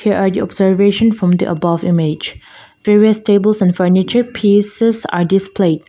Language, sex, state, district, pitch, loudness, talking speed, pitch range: English, female, Mizoram, Aizawl, 195 Hz, -13 LUFS, 155 wpm, 180-210 Hz